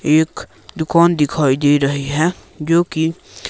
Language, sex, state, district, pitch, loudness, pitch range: Hindi, male, Himachal Pradesh, Shimla, 155 Hz, -16 LUFS, 145-165 Hz